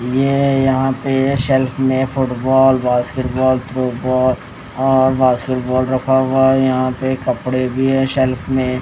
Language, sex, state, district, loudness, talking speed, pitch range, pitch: Hindi, male, Odisha, Khordha, -16 LUFS, 135 wpm, 130-135 Hz, 130 Hz